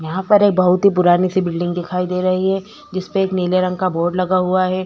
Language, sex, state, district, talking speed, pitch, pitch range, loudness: Hindi, female, Chhattisgarh, Korba, 260 wpm, 185 Hz, 180-190 Hz, -17 LUFS